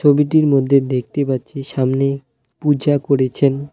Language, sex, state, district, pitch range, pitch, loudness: Bengali, male, West Bengal, Alipurduar, 135-145 Hz, 140 Hz, -17 LUFS